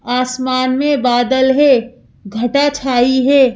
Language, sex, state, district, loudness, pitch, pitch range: Hindi, female, Madhya Pradesh, Bhopal, -14 LUFS, 260 Hz, 245-275 Hz